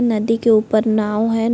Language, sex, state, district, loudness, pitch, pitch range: Hindi, female, Uttar Pradesh, Jalaun, -17 LUFS, 225 Hz, 215-230 Hz